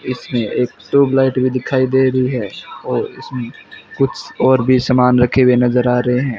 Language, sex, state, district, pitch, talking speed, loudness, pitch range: Hindi, male, Rajasthan, Bikaner, 130 Hz, 190 wpm, -15 LUFS, 125-130 Hz